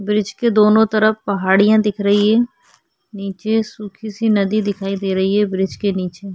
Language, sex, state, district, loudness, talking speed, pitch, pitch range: Hindi, female, Uttarakhand, Tehri Garhwal, -17 LUFS, 180 wpm, 210 Hz, 195-220 Hz